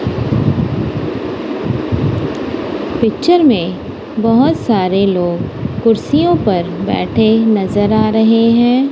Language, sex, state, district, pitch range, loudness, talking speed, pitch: Hindi, female, Punjab, Kapurthala, 215-285 Hz, -14 LUFS, 80 wpm, 225 Hz